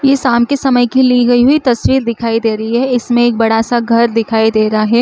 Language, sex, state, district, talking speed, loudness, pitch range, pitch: Chhattisgarhi, female, Chhattisgarh, Rajnandgaon, 225 wpm, -12 LUFS, 225-250 Hz, 240 Hz